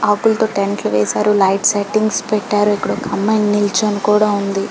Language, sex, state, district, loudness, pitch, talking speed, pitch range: Telugu, female, Telangana, Karimnagar, -16 LUFS, 205 Hz, 155 wpm, 200-215 Hz